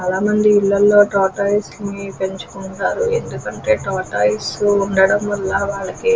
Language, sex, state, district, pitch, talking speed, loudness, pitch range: Telugu, female, Andhra Pradesh, Krishna, 200 Hz, 105 wpm, -17 LUFS, 190-205 Hz